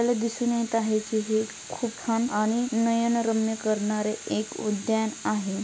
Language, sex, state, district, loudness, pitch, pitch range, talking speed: Marathi, female, Maharashtra, Pune, -26 LUFS, 220 Hz, 215-230 Hz, 125 wpm